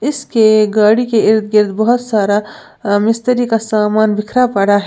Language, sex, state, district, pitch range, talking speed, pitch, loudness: Hindi, female, Uttar Pradesh, Lalitpur, 210-235 Hz, 160 wpm, 215 Hz, -13 LUFS